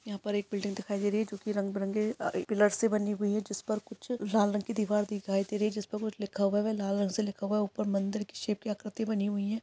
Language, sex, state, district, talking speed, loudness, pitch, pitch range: Hindi, female, Bihar, Kishanganj, 320 wpm, -32 LUFS, 210 Hz, 200-215 Hz